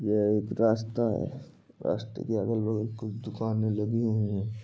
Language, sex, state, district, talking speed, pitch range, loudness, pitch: Bhojpuri, male, Uttar Pradesh, Gorakhpur, 170 wpm, 105-110 Hz, -29 LUFS, 110 Hz